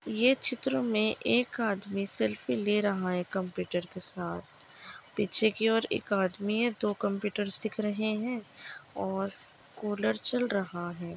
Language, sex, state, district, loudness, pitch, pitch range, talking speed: Hindi, female, Maharashtra, Dhule, -31 LUFS, 210 Hz, 190-225 Hz, 150 wpm